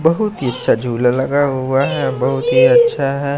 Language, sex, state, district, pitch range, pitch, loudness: Hindi, male, Madhya Pradesh, Katni, 130-210 Hz, 140 Hz, -15 LUFS